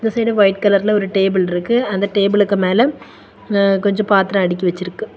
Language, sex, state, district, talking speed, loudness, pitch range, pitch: Tamil, female, Tamil Nadu, Kanyakumari, 160 wpm, -16 LUFS, 195-215 Hz, 200 Hz